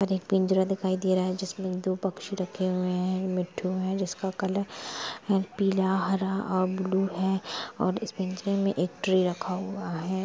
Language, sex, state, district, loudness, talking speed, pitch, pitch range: Hindi, female, Chhattisgarh, Rajnandgaon, -28 LUFS, 175 wpm, 190 Hz, 185-195 Hz